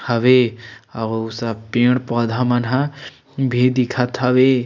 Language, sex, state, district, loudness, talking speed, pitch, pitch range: Chhattisgarhi, male, Chhattisgarh, Sarguja, -18 LUFS, 165 wpm, 125 Hz, 115-130 Hz